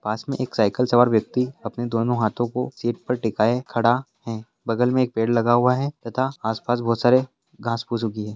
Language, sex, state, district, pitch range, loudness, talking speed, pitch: Hindi, male, Bihar, Jahanabad, 115-125 Hz, -22 LUFS, 210 wpm, 120 Hz